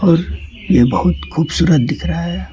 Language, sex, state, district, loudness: Hindi, male, West Bengal, Alipurduar, -15 LUFS